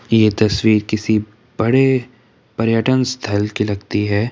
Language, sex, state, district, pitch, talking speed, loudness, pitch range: Hindi, male, Uttar Pradesh, Jyotiba Phule Nagar, 110 Hz, 125 wpm, -17 LUFS, 105-120 Hz